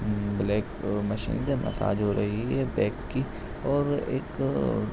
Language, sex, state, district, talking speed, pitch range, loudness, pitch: Hindi, male, Jharkhand, Jamtara, 160 wpm, 100-110 Hz, -28 LUFS, 105 Hz